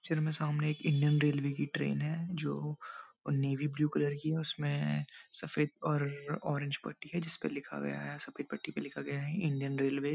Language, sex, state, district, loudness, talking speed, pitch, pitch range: Hindi, male, Uttarakhand, Uttarkashi, -35 LUFS, 200 wpm, 145 Hz, 140-155 Hz